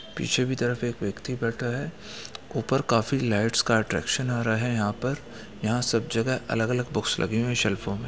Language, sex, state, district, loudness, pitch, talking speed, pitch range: Hindi, male, Chhattisgarh, Raigarh, -26 LUFS, 120 Hz, 200 wpm, 110-125 Hz